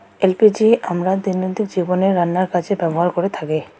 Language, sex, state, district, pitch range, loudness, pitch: Bengali, female, West Bengal, Alipurduar, 175-195 Hz, -18 LUFS, 185 Hz